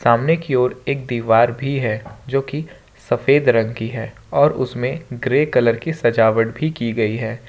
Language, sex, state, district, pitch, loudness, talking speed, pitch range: Hindi, male, Jharkhand, Ranchi, 120 Hz, -19 LUFS, 175 wpm, 115-140 Hz